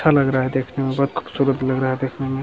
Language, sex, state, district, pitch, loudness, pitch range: Hindi, male, Bihar, Jamui, 135 Hz, -21 LUFS, 130-140 Hz